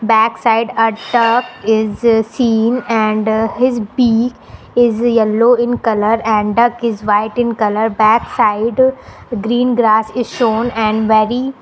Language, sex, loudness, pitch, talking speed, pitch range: English, female, -14 LUFS, 225 Hz, 135 wpm, 220-240 Hz